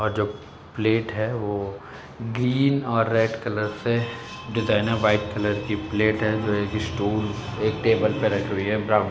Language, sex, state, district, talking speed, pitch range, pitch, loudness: Hindi, male, Uttar Pradesh, Jalaun, 185 wpm, 105-115 Hz, 110 Hz, -24 LUFS